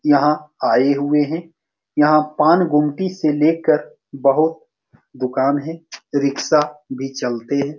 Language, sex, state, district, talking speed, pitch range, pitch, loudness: Hindi, male, Bihar, Saran, 125 wpm, 140-155 Hz, 150 Hz, -18 LUFS